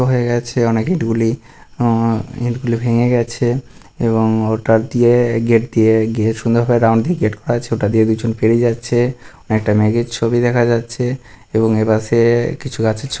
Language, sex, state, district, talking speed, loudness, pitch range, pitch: Bengali, male, West Bengal, Malda, 175 wpm, -16 LUFS, 110-120 Hz, 115 Hz